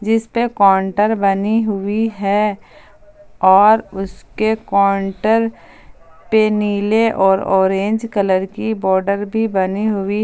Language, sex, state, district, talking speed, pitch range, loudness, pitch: Hindi, female, Jharkhand, Palamu, 105 wpm, 195-220 Hz, -16 LUFS, 205 Hz